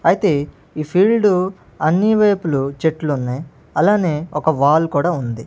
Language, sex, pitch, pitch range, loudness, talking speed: Telugu, male, 160 Hz, 145-185 Hz, -17 LUFS, 130 wpm